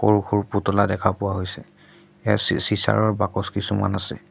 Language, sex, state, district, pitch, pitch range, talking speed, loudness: Assamese, male, Assam, Sonitpur, 100 Hz, 95-105 Hz, 165 wpm, -22 LUFS